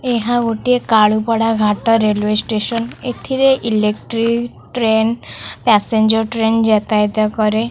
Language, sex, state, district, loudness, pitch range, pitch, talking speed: Odia, female, Odisha, Khordha, -16 LUFS, 215-235 Hz, 225 Hz, 110 wpm